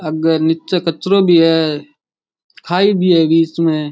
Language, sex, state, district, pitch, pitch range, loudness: Rajasthani, male, Rajasthan, Churu, 165 Hz, 160-175 Hz, -14 LUFS